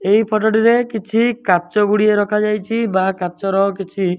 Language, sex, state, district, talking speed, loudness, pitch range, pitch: Odia, male, Odisha, Malkangiri, 170 wpm, -16 LUFS, 195-220 Hz, 210 Hz